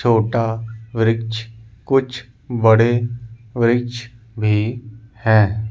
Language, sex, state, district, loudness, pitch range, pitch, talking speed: Hindi, male, Chandigarh, Chandigarh, -18 LUFS, 110-120 Hz, 115 Hz, 75 wpm